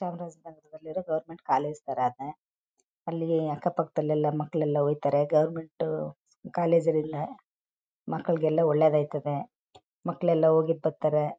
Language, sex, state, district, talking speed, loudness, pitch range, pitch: Kannada, female, Karnataka, Chamarajanagar, 90 wpm, -28 LUFS, 150-165 Hz, 155 Hz